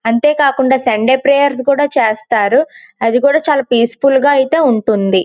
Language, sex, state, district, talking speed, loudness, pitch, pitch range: Telugu, female, Andhra Pradesh, Srikakulam, 160 wpm, -12 LUFS, 265 Hz, 230-280 Hz